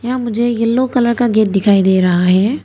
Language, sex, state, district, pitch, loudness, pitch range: Hindi, female, Arunachal Pradesh, Papum Pare, 230 Hz, -13 LUFS, 195-240 Hz